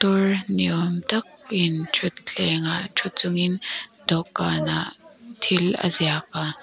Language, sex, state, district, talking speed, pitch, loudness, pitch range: Mizo, female, Mizoram, Aizawl, 120 wpm, 180 Hz, -23 LUFS, 160-195 Hz